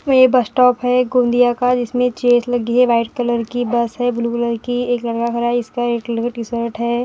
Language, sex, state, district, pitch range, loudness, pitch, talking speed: Hindi, female, Maharashtra, Gondia, 235-245 Hz, -17 LUFS, 240 Hz, 240 wpm